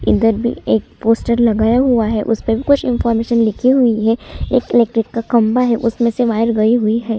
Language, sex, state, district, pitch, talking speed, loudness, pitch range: Hindi, female, Chhattisgarh, Sukma, 230 Hz, 210 wpm, -15 LUFS, 225-235 Hz